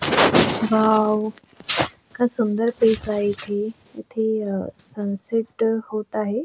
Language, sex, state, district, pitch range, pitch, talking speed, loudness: Marathi, female, Goa, North and South Goa, 210-225 Hz, 215 Hz, 100 wpm, -21 LUFS